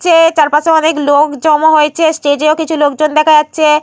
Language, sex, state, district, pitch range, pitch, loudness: Bengali, female, Jharkhand, Jamtara, 300-315 Hz, 305 Hz, -10 LUFS